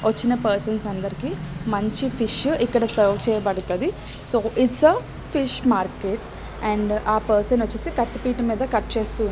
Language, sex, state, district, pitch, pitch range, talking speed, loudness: Telugu, female, Andhra Pradesh, Srikakulam, 220 Hz, 210-245 Hz, 150 wpm, -22 LUFS